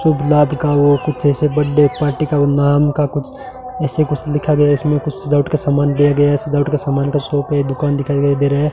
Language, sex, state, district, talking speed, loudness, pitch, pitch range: Hindi, male, Rajasthan, Bikaner, 245 wpm, -15 LUFS, 145 Hz, 145-150 Hz